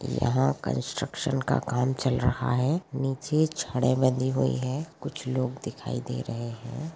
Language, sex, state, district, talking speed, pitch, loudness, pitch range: Hindi, female, Chhattisgarh, Rajnandgaon, 155 wpm, 130 Hz, -28 LUFS, 125-135 Hz